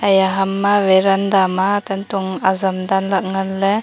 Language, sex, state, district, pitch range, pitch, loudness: Wancho, female, Arunachal Pradesh, Longding, 190-195 Hz, 195 Hz, -17 LUFS